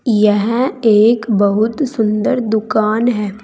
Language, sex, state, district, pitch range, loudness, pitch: Hindi, female, Uttar Pradesh, Saharanpur, 210-240 Hz, -14 LUFS, 220 Hz